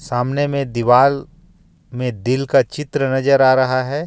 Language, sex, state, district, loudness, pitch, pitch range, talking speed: Hindi, male, Jharkhand, Ranchi, -17 LUFS, 130 Hz, 125-140 Hz, 160 wpm